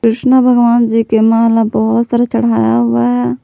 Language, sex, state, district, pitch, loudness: Hindi, female, Jharkhand, Palamu, 225 Hz, -11 LUFS